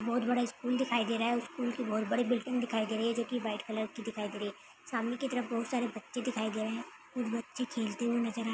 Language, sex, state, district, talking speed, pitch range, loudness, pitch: Hindi, female, Maharashtra, Nagpur, 295 wpm, 225-245 Hz, -34 LUFS, 235 Hz